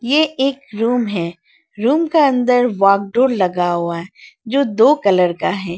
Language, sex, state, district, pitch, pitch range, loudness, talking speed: Hindi, female, Arunachal Pradesh, Lower Dibang Valley, 225 Hz, 185-265 Hz, -16 LUFS, 165 wpm